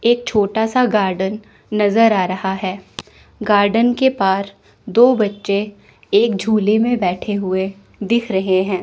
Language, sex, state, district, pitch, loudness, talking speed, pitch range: Hindi, female, Chandigarh, Chandigarh, 205 Hz, -17 LUFS, 145 wpm, 195-230 Hz